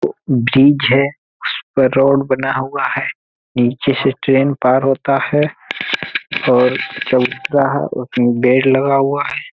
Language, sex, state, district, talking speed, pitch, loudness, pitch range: Hindi, male, Bihar, Jamui, 115 wpm, 135 Hz, -15 LUFS, 130-140 Hz